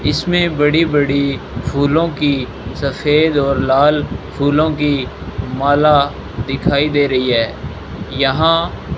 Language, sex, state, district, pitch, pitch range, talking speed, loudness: Hindi, male, Rajasthan, Bikaner, 145 Hz, 135-150 Hz, 115 wpm, -15 LUFS